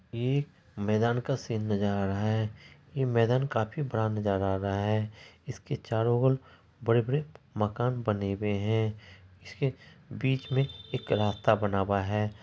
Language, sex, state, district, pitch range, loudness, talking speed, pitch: Hindi, female, Bihar, Araria, 100-125 Hz, -30 LUFS, 155 wpm, 110 Hz